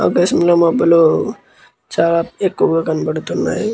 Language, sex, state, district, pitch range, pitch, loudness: Telugu, male, Andhra Pradesh, Guntur, 165-175 Hz, 170 Hz, -15 LUFS